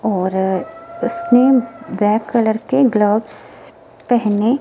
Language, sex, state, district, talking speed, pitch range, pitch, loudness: Hindi, female, Himachal Pradesh, Shimla, 80 wpm, 210-255 Hz, 225 Hz, -16 LUFS